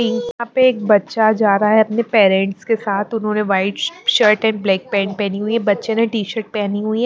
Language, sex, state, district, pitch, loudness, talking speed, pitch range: Hindi, female, Maharashtra, Mumbai Suburban, 215 Hz, -17 LUFS, 230 wpm, 200-230 Hz